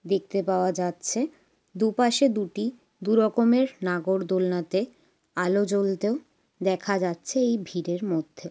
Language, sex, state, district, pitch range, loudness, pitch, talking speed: Bengali, female, West Bengal, Jalpaiguri, 180-225 Hz, -26 LUFS, 195 Hz, 115 wpm